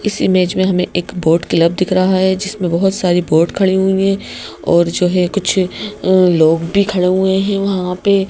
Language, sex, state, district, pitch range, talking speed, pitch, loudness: Hindi, female, Madhya Pradesh, Bhopal, 180-195 Hz, 210 wpm, 185 Hz, -14 LUFS